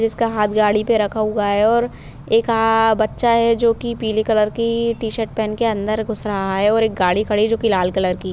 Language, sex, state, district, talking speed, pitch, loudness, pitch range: Bhojpuri, female, Bihar, Saran, 250 wpm, 220 Hz, -18 LUFS, 210-230 Hz